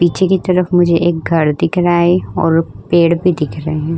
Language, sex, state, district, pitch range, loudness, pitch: Hindi, female, Uttar Pradesh, Hamirpur, 165-180 Hz, -14 LUFS, 170 Hz